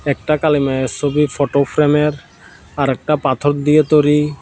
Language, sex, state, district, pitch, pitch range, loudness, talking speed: Bengali, male, Tripura, South Tripura, 145 Hz, 140-150 Hz, -15 LUFS, 150 wpm